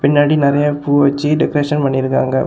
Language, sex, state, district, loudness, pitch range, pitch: Tamil, male, Tamil Nadu, Kanyakumari, -14 LUFS, 140-145 Hz, 145 Hz